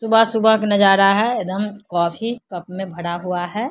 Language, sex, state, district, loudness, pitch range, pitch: Maithili, female, Bihar, Samastipur, -18 LUFS, 180-220 Hz, 200 Hz